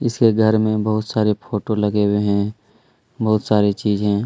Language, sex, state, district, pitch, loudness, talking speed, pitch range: Hindi, male, Chhattisgarh, Kabirdham, 105 Hz, -19 LUFS, 170 wpm, 105-110 Hz